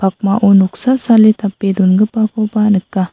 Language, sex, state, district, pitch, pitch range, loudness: Garo, female, Meghalaya, South Garo Hills, 205 Hz, 195-215 Hz, -12 LUFS